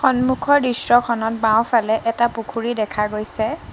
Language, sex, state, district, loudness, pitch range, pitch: Assamese, female, Assam, Sonitpur, -19 LUFS, 220-245 Hz, 230 Hz